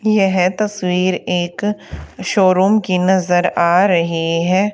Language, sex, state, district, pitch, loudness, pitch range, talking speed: Hindi, female, Haryana, Charkhi Dadri, 185 Hz, -16 LUFS, 180-200 Hz, 115 wpm